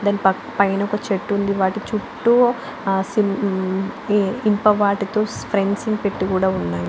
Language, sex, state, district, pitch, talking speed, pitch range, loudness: Telugu, female, Andhra Pradesh, Anantapur, 200 Hz, 95 wpm, 195-215 Hz, -20 LUFS